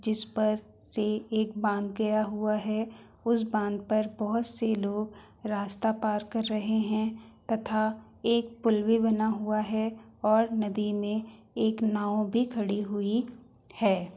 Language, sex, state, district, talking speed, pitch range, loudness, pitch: Hindi, female, Uttar Pradesh, Hamirpur, 150 wpm, 210-225 Hz, -29 LUFS, 215 Hz